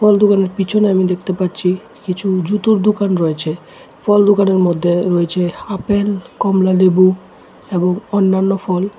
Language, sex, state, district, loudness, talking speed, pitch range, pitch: Bengali, male, Tripura, West Tripura, -15 LUFS, 125 wpm, 180-205 Hz, 190 Hz